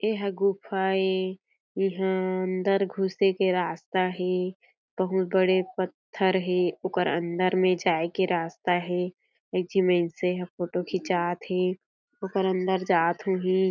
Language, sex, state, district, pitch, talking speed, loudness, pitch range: Chhattisgarhi, female, Chhattisgarh, Jashpur, 185 Hz, 145 wpm, -26 LUFS, 180-190 Hz